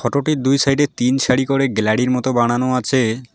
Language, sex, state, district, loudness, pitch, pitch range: Bengali, male, West Bengal, Alipurduar, -17 LUFS, 130 Hz, 120-135 Hz